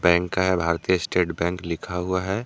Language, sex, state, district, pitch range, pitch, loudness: Hindi, male, Jharkhand, Deoghar, 85-95 Hz, 90 Hz, -24 LUFS